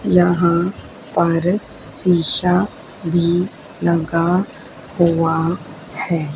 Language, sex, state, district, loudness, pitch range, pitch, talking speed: Hindi, female, Haryana, Charkhi Dadri, -18 LUFS, 165-180 Hz, 170 Hz, 65 wpm